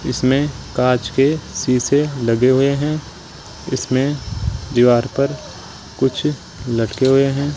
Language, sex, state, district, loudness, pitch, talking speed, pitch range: Hindi, male, Rajasthan, Jaipur, -18 LUFS, 130 Hz, 110 wpm, 120-140 Hz